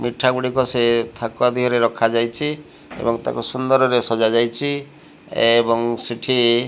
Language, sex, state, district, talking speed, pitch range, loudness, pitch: Odia, male, Odisha, Malkangiri, 115 wpm, 115-130 Hz, -19 LUFS, 120 Hz